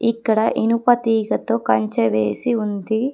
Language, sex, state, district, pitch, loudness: Telugu, female, Telangana, Komaram Bheem, 220 Hz, -19 LUFS